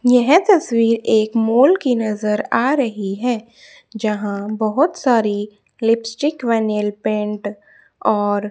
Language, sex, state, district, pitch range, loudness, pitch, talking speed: Hindi, female, Haryana, Charkhi Dadri, 210-245 Hz, -18 LUFS, 225 Hz, 115 wpm